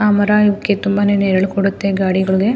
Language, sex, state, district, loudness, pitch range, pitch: Kannada, female, Karnataka, Mysore, -15 LUFS, 195-205 Hz, 200 Hz